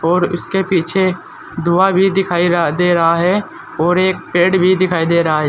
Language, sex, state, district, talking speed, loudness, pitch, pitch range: Hindi, male, Uttar Pradesh, Saharanpur, 185 wpm, -14 LUFS, 180 Hz, 170-185 Hz